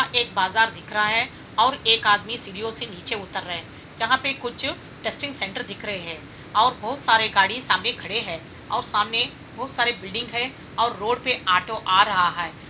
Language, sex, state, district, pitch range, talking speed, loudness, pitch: Hindi, female, Bihar, Gopalganj, 195-240 Hz, 200 wpm, -22 LUFS, 220 Hz